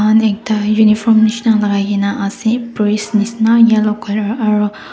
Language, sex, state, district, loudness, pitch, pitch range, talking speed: Nagamese, female, Nagaland, Dimapur, -14 LUFS, 215 Hz, 210-220 Hz, 160 wpm